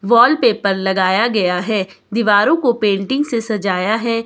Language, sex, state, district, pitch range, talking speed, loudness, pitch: Hindi, male, Himachal Pradesh, Shimla, 195-235 Hz, 140 wpm, -16 LUFS, 215 Hz